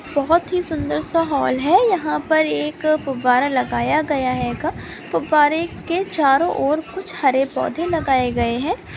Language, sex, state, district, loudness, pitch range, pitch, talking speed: Hindi, female, Andhra Pradesh, Chittoor, -19 LUFS, 255-330 Hz, 295 Hz, 155 wpm